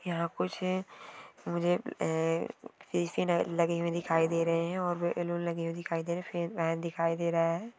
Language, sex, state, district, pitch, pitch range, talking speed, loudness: Hindi, female, Bihar, East Champaran, 170 Hz, 165-175 Hz, 175 wpm, -32 LUFS